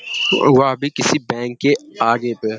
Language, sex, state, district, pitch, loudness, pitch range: Hindi, male, Uttarakhand, Uttarkashi, 125 Hz, -17 LUFS, 120-140 Hz